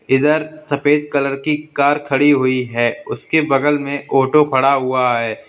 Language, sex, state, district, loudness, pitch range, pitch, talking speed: Hindi, male, Uttar Pradesh, Lalitpur, -16 LUFS, 130-145 Hz, 140 Hz, 165 wpm